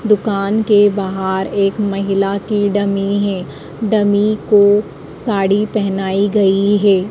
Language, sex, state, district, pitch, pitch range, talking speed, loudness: Hindi, female, Madhya Pradesh, Dhar, 200 Hz, 195-210 Hz, 120 wpm, -15 LUFS